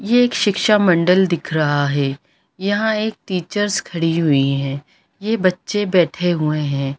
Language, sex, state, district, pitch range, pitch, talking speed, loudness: Hindi, female, Bihar, Jamui, 150-205 Hz, 180 Hz, 155 wpm, -18 LUFS